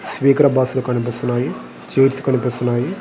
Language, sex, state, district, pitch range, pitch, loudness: Telugu, male, Andhra Pradesh, Guntur, 120-135 Hz, 125 Hz, -18 LUFS